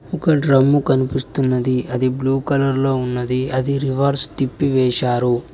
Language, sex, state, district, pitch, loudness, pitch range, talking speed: Telugu, male, Telangana, Mahabubabad, 130 Hz, -18 LUFS, 125-140 Hz, 130 wpm